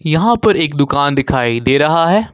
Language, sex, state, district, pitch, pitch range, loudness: Hindi, male, Jharkhand, Ranchi, 150 Hz, 135-170 Hz, -13 LUFS